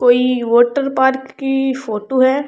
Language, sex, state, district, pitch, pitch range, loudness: Rajasthani, female, Rajasthan, Churu, 265 Hz, 245-270 Hz, -16 LUFS